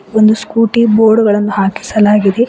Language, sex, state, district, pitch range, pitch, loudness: Kannada, female, Karnataka, Bidar, 205-225 Hz, 215 Hz, -11 LUFS